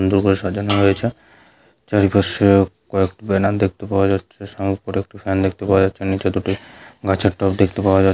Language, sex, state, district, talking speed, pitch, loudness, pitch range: Bengali, male, West Bengal, Jhargram, 155 wpm, 95 Hz, -18 LUFS, 95-100 Hz